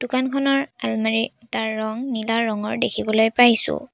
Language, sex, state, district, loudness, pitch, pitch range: Assamese, female, Assam, Sonitpur, -21 LUFS, 230 Hz, 220-255 Hz